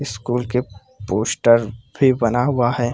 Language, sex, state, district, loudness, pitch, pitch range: Hindi, male, Bihar, Purnia, -19 LUFS, 120 Hz, 115-125 Hz